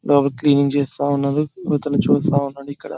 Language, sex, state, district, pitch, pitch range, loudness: Telugu, male, Andhra Pradesh, Chittoor, 140 Hz, 140-145 Hz, -19 LUFS